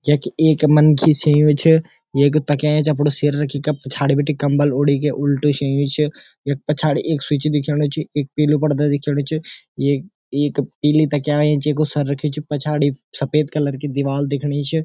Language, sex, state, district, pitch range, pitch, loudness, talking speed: Garhwali, male, Uttarakhand, Uttarkashi, 140-150 Hz, 145 Hz, -17 LUFS, 190 wpm